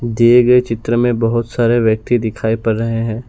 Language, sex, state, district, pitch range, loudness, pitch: Hindi, male, Assam, Sonitpur, 115-120 Hz, -14 LUFS, 115 Hz